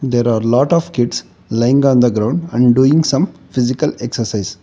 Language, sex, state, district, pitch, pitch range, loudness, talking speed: English, male, Karnataka, Bangalore, 125 Hz, 115-135 Hz, -15 LUFS, 180 wpm